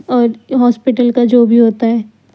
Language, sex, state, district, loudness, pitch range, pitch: Hindi, female, Chandigarh, Chandigarh, -12 LUFS, 230-245 Hz, 240 Hz